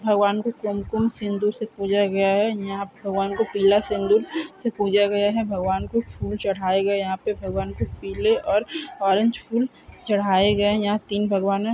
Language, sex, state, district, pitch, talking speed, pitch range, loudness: Hindi, female, Andhra Pradesh, Guntur, 205 Hz, 170 wpm, 195-225 Hz, -23 LUFS